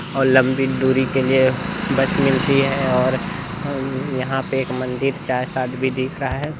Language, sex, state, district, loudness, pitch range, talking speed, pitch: Hindi, male, Bihar, Araria, -19 LUFS, 130-135 Hz, 155 wpm, 130 Hz